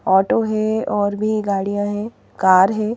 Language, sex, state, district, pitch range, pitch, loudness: Hindi, female, Madhya Pradesh, Bhopal, 200-215 Hz, 205 Hz, -18 LUFS